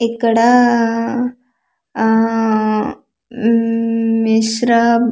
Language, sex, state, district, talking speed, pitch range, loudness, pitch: Telugu, female, Andhra Pradesh, Manyam, 60 wpm, 225-240 Hz, -15 LUFS, 230 Hz